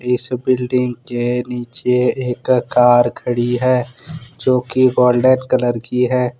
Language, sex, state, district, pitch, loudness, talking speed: Hindi, male, Jharkhand, Ranchi, 125 Hz, -16 LUFS, 130 wpm